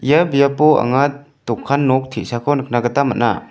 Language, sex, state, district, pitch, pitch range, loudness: Garo, male, Meghalaya, West Garo Hills, 140 Hz, 120-145 Hz, -16 LUFS